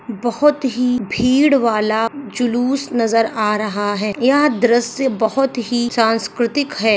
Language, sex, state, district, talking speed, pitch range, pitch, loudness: Hindi, female, Rajasthan, Churu, 130 wpm, 220-265 Hz, 240 Hz, -17 LUFS